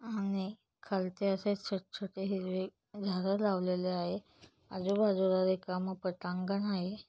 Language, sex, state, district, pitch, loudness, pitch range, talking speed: Marathi, female, Maharashtra, Chandrapur, 190 Hz, -35 LUFS, 185-200 Hz, 110 wpm